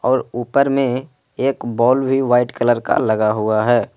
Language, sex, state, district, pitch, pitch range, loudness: Hindi, male, Jharkhand, Ranchi, 125 Hz, 115-130 Hz, -17 LUFS